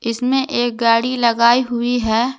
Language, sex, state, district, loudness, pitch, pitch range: Hindi, female, Jharkhand, Garhwa, -16 LUFS, 240 Hz, 230-250 Hz